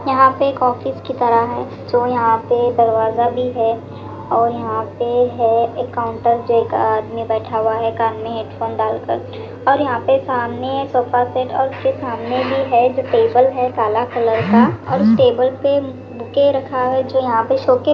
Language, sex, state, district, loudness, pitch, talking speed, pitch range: Hindi, female, Delhi, New Delhi, -17 LUFS, 245 Hz, 195 wpm, 230-260 Hz